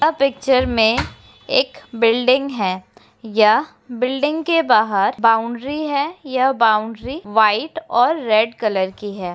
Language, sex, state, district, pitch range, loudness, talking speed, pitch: Hindi, female, Uttar Pradesh, Hamirpur, 215-275 Hz, -18 LUFS, 130 wpm, 235 Hz